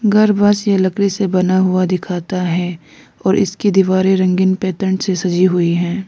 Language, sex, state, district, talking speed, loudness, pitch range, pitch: Hindi, female, Arunachal Pradesh, Lower Dibang Valley, 180 wpm, -15 LUFS, 180-195 Hz, 185 Hz